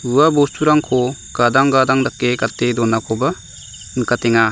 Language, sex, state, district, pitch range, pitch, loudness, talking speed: Garo, male, Meghalaya, South Garo Hills, 115-135 Hz, 125 Hz, -16 LUFS, 105 wpm